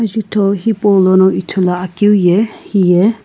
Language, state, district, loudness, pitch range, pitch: Sumi, Nagaland, Kohima, -12 LUFS, 185-210 Hz, 195 Hz